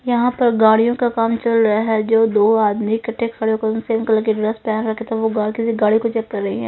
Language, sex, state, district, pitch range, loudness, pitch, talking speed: Hindi, female, Punjab, Fazilka, 220-230 Hz, -17 LUFS, 225 Hz, 280 wpm